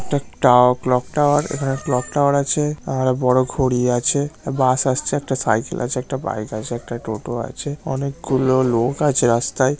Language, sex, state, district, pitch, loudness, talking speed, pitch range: Bengali, male, West Bengal, North 24 Parganas, 130 Hz, -19 LUFS, 165 wpm, 125-140 Hz